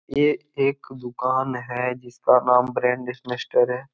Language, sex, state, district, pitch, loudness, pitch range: Hindi, male, Bihar, Jahanabad, 125 Hz, -22 LUFS, 125-135 Hz